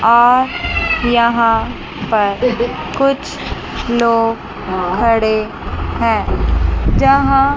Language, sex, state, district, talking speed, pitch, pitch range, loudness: Hindi, female, Chandigarh, Chandigarh, 65 wpm, 235 Hz, 225-255 Hz, -15 LUFS